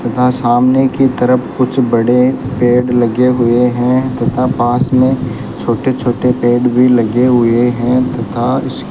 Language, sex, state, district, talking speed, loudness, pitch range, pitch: Hindi, male, Rajasthan, Bikaner, 155 wpm, -12 LUFS, 120-130 Hz, 125 Hz